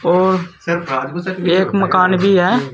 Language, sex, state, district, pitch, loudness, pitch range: Hindi, male, Uttar Pradesh, Saharanpur, 185 Hz, -15 LUFS, 170-185 Hz